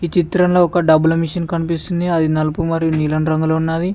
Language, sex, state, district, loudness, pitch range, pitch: Telugu, male, Telangana, Mahabubabad, -16 LUFS, 160-175 Hz, 165 Hz